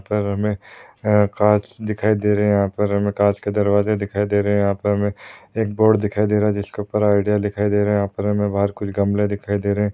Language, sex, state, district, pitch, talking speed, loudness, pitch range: Hindi, male, Maharashtra, Aurangabad, 105 Hz, 235 wpm, -19 LUFS, 100-105 Hz